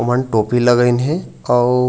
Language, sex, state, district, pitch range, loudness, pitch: Chhattisgarhi, male, Chhattisgarh, Raigarh, 120-125 Hz, -16 LUFS, 120 Hz